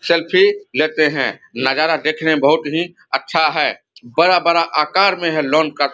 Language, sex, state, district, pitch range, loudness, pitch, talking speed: Hindi, male, Bihar, Vaishali, 150-170 Hz, -16 LUFS, 160 Hz, 180 wpm